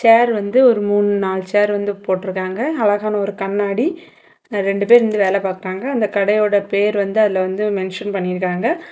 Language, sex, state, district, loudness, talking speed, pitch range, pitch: Tamil, female, Tamil Nadu, Kanyakumari, -17 LUFS, 170 wpm, 195-220 Hz, 205 Hz